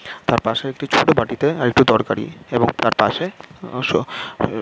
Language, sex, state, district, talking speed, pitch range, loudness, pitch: Bengali, male, West Bengal, Jhargram, 180 wpm, 115-140 Hz, -19 LUFS, 130 Hz